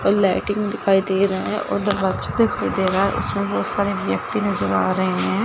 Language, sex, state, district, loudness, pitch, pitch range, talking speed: Hindi, female, Chandigarh, Chandigarh, -20 LUFS, 195 Hz, 190-205 Hz, 220 wpm